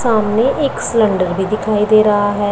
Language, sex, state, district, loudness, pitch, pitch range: Hindi, male, Punjab, Pathankot, -14 LUFS, 215 Hz, 205-225 Hz